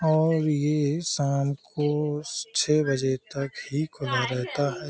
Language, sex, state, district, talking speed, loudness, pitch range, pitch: Hindi, male, Uttar Pradesh, Hamirpur, 145 wpm, -26 LUFS, 140-155 Hz, 145 Hz